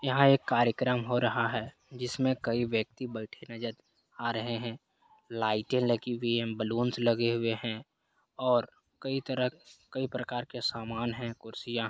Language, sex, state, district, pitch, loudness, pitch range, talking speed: Hindi, male, Uttar Pradesh, Hamirpur, 120 Hz, -31 LUFS, 115-125 Hz, 170 wpm